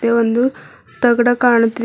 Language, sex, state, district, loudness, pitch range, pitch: Kannada, female, Karnataka, Bidar, -15 LUFS, 230-245 Hz, 235 Hz